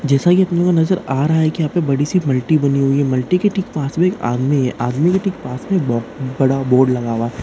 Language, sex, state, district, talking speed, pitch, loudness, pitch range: Hindi, male, West Bengal, Dakshin Dinajpur, 285 wpm, 140 Hz, -17 LUFS, 130-175 Hz